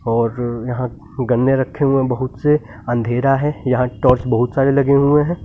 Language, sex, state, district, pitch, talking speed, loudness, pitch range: Hindi, male, Uttar Pradesh, Lucknow, 125 Hz, 175 wpm, -17 LUFS, 120-140 Hz